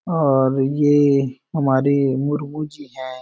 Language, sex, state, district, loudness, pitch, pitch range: Hindi, male, Chhattisgarh, Balrampur, -18 LUFS, 140 Hz, 135-145 Hz